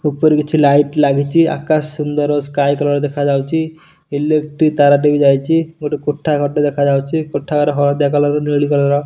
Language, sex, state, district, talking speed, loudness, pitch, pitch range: Odia, male, Odisha, Nuapada, 150 wpm, -15 LUFS, 145 Hz, 145-155 Hz